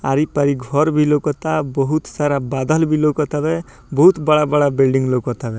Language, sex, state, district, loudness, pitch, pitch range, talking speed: Bhojpuri, male, Bihar, Muzaffarpur, -17 LUFS, 145 Hz, 135-155 Hz, 160 wpm